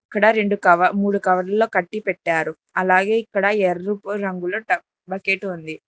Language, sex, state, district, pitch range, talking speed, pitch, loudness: Telugu, female, Telangana, Hyderabad, 180-205 Hz, 145 wpm, 190 Hz, -20 LUFS